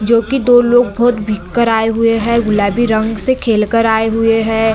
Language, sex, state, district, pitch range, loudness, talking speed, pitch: Hindi, female, Bihar, Vaishali, 220-235 Hz, -13 LUFS, 215 wpm, 225 Hz